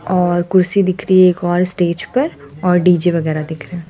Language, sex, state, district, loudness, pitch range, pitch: Hindi, female, Madhya Pradesh, Bhopal, -15 LUFS, 170-185 Hz, 180 Hz